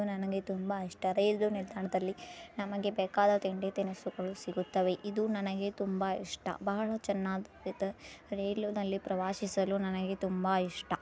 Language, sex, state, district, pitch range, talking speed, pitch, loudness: Kannada, female, Karnataka, Dakshina Kannada, 190-205 Hz, 125 wpm, 195 Hz, -34 LUFS